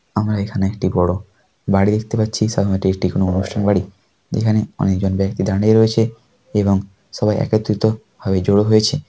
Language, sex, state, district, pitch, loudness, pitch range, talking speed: Bengali, male, West Bengal, Paschim Medinipur, 105 Hz, -18 LUFS, 95-110 Hz, 150 wpm